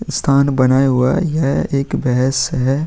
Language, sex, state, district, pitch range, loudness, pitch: Hindi, male, Bihar, Vaishali, 130-140 Hz, -15 LUFS, 135 Hz